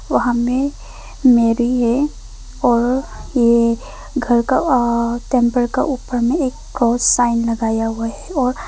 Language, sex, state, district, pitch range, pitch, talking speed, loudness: Hindi, female, Arunachal Pradesh, Papum Pare, 235-255 Hz, 245 Hz, 145 wpm, -17 LUFS